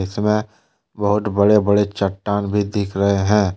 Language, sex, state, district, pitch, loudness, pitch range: Hindi, male, Jharkhand, Deoghar, 100 Hz, -18 LUFS, 100-105 Hz